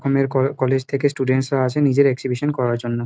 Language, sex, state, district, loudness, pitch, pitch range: Bengali, male, West Bengal, Kolkata, -19 LUFS, 135 Hz, 130-140 Hz